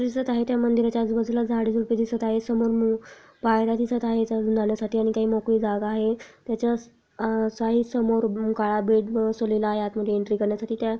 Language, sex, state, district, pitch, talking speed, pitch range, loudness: Marathi, female, Maharashtra, Chandrapur, 225 Hz, 180 wpm, 220-230 Hz, -24 LUFS